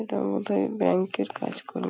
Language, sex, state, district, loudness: Bengali, female, West Bengal, Paschim Medinipur, -27 LUFS